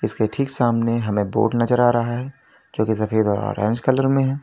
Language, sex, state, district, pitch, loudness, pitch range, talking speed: Hindi, male, Uttar Pradesh, Lalitpur, 120 Hz, -20 LUFS, 110-135 Hz, 230 wpm